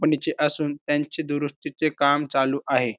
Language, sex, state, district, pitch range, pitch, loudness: Marathi, male, Maharashtra, Pune, 140-155 Hz, 145 Hz, -24 LUFS